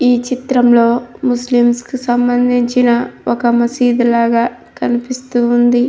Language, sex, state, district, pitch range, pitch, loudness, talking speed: Telugu, female, Andhra Pradesh, Krishna, 240-245 Hz, 245 Hz, -14 LUFS, 100 wpm